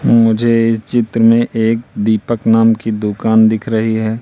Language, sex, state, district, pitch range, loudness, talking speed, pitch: Hindi, male, Madhya Pradesh, Katni, 110-115 Hz, -13 LUFS, 170 wpm, 115 Hz